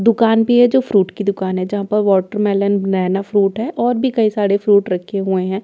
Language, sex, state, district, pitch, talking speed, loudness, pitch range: Hindi, female, Delhi, New Delhi, 200 Hz, 235 wpm, -16 LUFS, 195-220 Hz